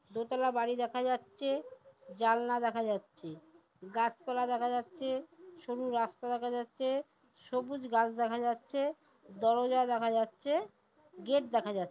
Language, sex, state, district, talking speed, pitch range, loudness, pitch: Bengali, female, West Bengal, Paschim Medinipur, 120 wpm, 230-265 Hz, -34 LUFS, 245 Hz